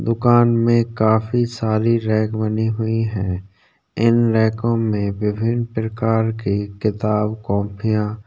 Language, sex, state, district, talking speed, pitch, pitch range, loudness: Hindi, male, Uttarakhand, Tehri Garhwal, 115 wpm, 110 Hz, 105-115 Hz, -19 LUFS